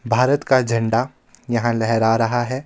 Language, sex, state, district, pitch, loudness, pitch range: Hindi, male, Himachal Pradesh, Shimla, 120 Hz, -19 LUFS, 115-130 Hz